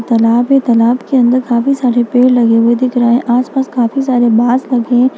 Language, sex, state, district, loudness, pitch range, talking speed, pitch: Hindi, female, Bihar, Bhagalpur, -11 LUFS, 235-255 Hz, 220 wpm, 245 Hz